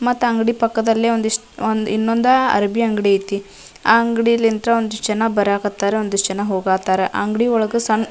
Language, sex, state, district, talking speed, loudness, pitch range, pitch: Kannada, female, Karnataka, Dharwad, 175 wpm, -18 LUFS, 205-230 Hz, 220 Hz